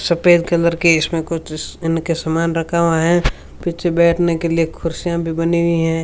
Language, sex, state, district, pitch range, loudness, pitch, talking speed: Hindi, female, Rajasthan, Bikaner, 165-170 Hz, -17 LUFS, 165 Hz, 190 wpm